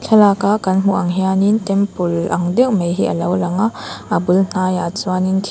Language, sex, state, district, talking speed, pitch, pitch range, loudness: Mizo, female, Mizoram, Aizawl, 230 wpm, 190 Hz, 180-200 Hz, -16 LUFS